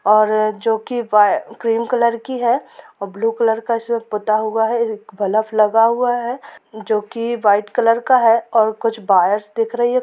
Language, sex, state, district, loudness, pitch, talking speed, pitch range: Hindi, female, Jharkhand, Sahebganj, -17 LUFS, 225 Hz, 190 wpm, 215-235 Hz